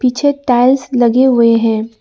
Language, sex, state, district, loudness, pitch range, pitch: Hindi, female, Arunachal Pradesh, Lower Dibang Valley, -12 LUFS, 230-260 Hz, 250 Hz